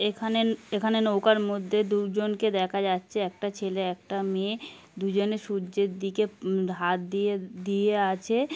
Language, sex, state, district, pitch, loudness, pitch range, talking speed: Bengali, female, West Bengal, Kolkata, 200 Hz, -27 LUFS, 190-210 Hz, 135 wpm